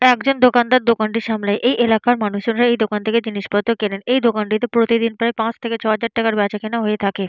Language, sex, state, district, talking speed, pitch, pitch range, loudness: Bengali, female, West Bengal, Dakshin Dinajpur, 195 wpm, 230 Hz, 215-235 Hz, -18 LUFS